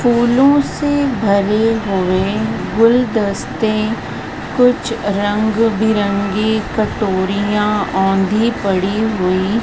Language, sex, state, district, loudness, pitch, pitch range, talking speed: Hindi, female, Madhya Pradesh, Dhar, -16 LUFS, 215 Hz, 200-230 Hz, 75 wpm